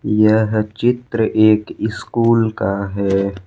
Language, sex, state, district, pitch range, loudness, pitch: Hindi, male, Jharkhand, Ranchi, 100-115 Hz, -17 LUFS, 110 Hz